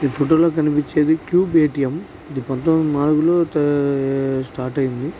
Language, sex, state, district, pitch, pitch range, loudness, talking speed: Telugu, male, Andhra Pradesh, Guntur, 150 Hz, 135-160 Hz, -18 LUFS, 140 wpm